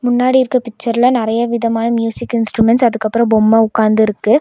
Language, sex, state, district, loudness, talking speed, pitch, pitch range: Tamil, female, Tamil Nadu, Nilgiris, -14 LUFS, 135 wpm, 230 Hz, 225-240 Hz